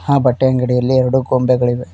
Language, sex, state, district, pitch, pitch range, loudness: Kannada, male, Karnataka, Koppal, 125 Hz, 125-130 Hz, -15 LUFS